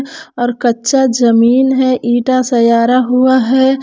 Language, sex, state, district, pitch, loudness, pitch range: Hindi, female, Jharkhand, Palamu, 255 Hz, -11 LUFS, 240-260 Hz